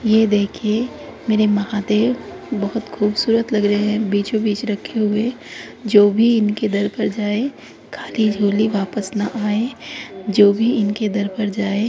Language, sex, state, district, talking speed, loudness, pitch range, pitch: Hindi, female, Uttar Pradesh, Hamirpur, 160 wpm, -19 LUFS, 205-220 Hz, 210 Hz